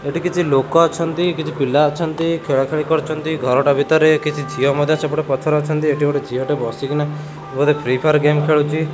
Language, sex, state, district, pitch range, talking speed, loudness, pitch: Odia, male, Odisha, Khordha, 145-155 Hz, 190 wpm, -17 LUFS, 150 Hz